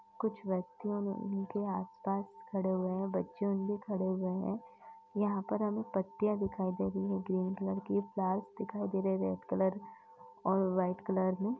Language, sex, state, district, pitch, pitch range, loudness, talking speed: Hindi, female, Uttar Pradesh, Etah, 195 Hz, 185-210 Hz, -35 LUFS, 185 wpm